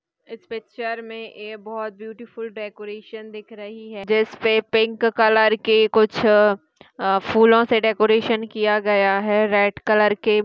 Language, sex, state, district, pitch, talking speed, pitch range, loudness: Hindi, female, Uttar Pradesh, Hamirpur, 220 Hz, 150 wpm, 210-225 Hz, -18 LUFS